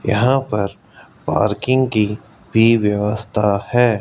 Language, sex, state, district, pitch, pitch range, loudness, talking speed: Hindi, male, Rajasthan, Jaipur, 110 Hz, 105-120 Hz, -17 LUFS, 105 wpm